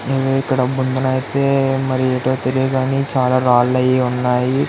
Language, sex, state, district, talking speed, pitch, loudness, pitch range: Telugu, male, Andhra Pradesh, Visakhapatnam, 140 wpm, 130 Hz, -17 LUFS, 130-135 Hz